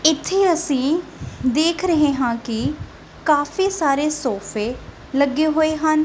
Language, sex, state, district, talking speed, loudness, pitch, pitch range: Punjabi, female, Punjab, Kapurthala, 120 wpm, -20 LUFS, 305 Hz, 265-320 Hz